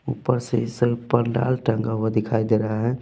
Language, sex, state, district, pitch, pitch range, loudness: Hindi, male, Bihar, West Champaran, 120 Hz, 110-125 Hz, -23 LUFS